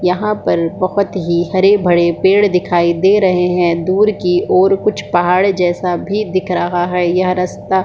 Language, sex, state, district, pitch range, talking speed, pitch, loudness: Hindi, female, Jharkhand, Sahebganj, 175-195 Hz, 185 wpm, 180 Hz, -14 LUFS